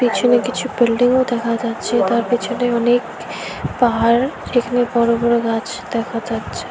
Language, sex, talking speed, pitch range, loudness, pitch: Bengali, female, 135 wpm, 230-245 Hz, -18 LUFS, 240 Hz